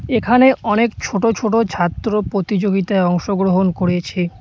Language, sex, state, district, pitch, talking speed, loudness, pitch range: Bengali, male, West Bengal, Cooch Behar, 200 Hz, 110 wpm, -17 LUFS, 185-225 Hz